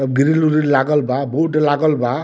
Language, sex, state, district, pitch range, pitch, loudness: Bhojpuri, male, Bihar, Muzaffarpur, 135-155 Hz, 150 Hz, -16 LUFS